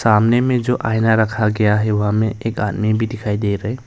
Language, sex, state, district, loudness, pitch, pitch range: Hindi, male, Arunachal Pradesh, Longding, -17 LUFS, 110 Hz, 105-115 Hz